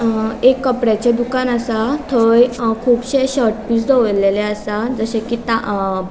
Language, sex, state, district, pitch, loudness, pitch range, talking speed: Konkani, female, Goa, North and South Goa, 230 Hz, -16 LUFS, 220-245 Hz, 155 wpm